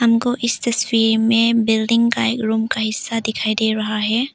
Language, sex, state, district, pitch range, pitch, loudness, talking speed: Hindi, female, Arunachal Pradesh, Papum Pare, 220-235 Hz, 225 Hz, -18 LUFS, 195 wpm